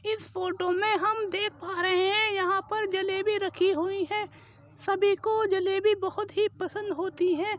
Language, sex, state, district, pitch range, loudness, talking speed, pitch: Hindi, female, Uttar Pradesh, Jyotiba Phule Nagar, 370-420 Hz, -27 LUFS, 175 wpm, 390 Hz